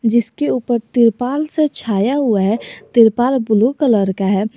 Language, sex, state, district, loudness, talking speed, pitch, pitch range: Hindi, male, Jharkhand, Garhwa, -16 LUFS, 160 wpm, 235 Hz, 215-260 Hz